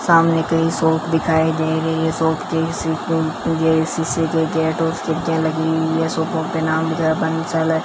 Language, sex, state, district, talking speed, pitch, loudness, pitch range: Hindi, female, Rajasthan, Bikaner, 160 wpm, 160 Hz, -19 LUFS, 160-165 Hz